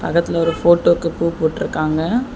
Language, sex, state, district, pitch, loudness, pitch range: Tamil, female, Tamil Nadu, Chennai, 170 Hz, -17 LUFS, 165-170 Hz